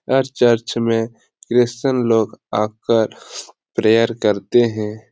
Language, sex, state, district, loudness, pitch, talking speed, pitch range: Hindi, male, Bihar, Lakhisarai, -18 LUFS, 115 Hz, 105 wpm, 110-120 Hz